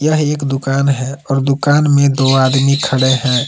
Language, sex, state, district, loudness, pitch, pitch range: Hindi, male, Jharkhand, Palamu, -13 LUFS, 135 Hz, 135-140 Hz